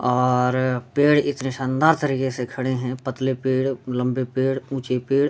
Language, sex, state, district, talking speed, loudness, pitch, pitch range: Hindi, male, Bihar, Darbhanga, 170 wpm, -22 LUFS, 130 Hz, 125-135 Hz